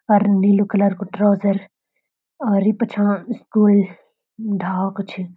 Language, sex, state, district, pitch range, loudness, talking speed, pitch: Garhwali, female, Uttarakhand, Uttarkashi, 195-210 Hz, -19 LUFS, 125 wpm, 200 Hz